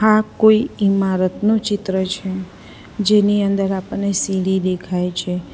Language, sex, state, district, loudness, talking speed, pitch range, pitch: Gujarati, female, Gujarat, Valsad, -18 LUFS, 120 wpm, 185-210 Hz, 195 Hz